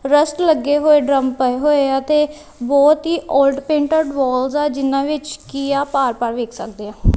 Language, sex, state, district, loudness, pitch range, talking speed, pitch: Punjabi, female, Punjab, Kapurthala, -17 LUFS, 265-300 Hz, 190 wpm, 280 Hz